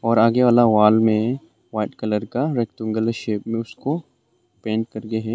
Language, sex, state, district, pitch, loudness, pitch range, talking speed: Hindi, male, Arunachal Pradesh, Longding, 115 Hz, -20 LUFS, 110-120 Hz, 170 wpm